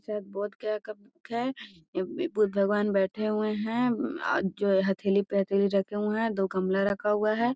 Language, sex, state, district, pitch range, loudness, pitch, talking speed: Magahi, female, Bihar, Gaya, 195-215 Hz, -28 LUFS, 210 Hz, 190 wpm